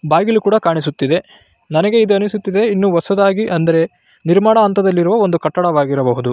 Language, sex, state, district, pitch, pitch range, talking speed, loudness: Kannada, male, Karnataka, Raichur, 185 Hz, 160-210 Hz, 130 wpm, -14 LUFS